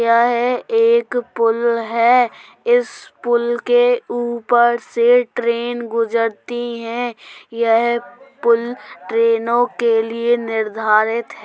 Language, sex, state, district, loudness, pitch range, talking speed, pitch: Hindi, female, Uttar Pradesh, Jalaun, -17 LUFS, 230-245 Hz, 95 wpm, 235 Hz